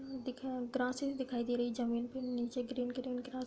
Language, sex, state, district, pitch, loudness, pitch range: Hindi, female, Uttar Pradesh, Budaun, 250 Hz, -38 LUFS, 245-260 Hz